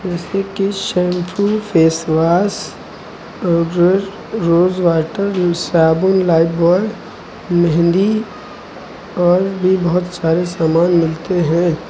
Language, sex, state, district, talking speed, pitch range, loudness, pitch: Hindi, male, Uttar Pradesh, Lucknow, 90 wpm, 170-195 Hz, -15 LUFS, 175 Hz